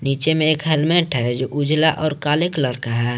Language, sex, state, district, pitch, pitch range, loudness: Hindi, male, Jharkhand, Garhwa, 150 Hz, 130-155 Hz, -19 LUFS